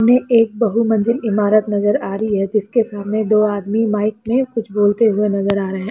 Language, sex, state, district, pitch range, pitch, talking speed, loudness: Hindi, female, Bihar, Lakhisarai, 205-225 Hz, 215 Hz, 215 wpm, -17 LUFS